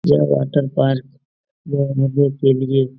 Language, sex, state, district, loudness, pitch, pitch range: Hindi, male, Uttar Pradesh, Etah, -18 LUFS, 135 Hz, 130-140 Hz